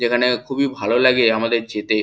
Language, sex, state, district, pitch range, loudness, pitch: Bengali, male, West Bengal, Kolkata, 110-125 Hz, -18 LUFS, 120 Hz